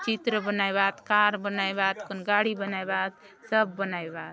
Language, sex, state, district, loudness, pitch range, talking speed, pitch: Halbi, female, Chhattisgarh, Bastar, -27 LUFS, 195-210 Hz, 110 wpm, 195 Hz